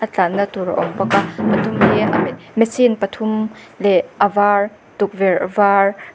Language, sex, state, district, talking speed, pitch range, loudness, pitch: Mizo, female, Mizoram, Aizawl, 165 wpm, 195-215 Hz, -17 LUFS, 205 Hz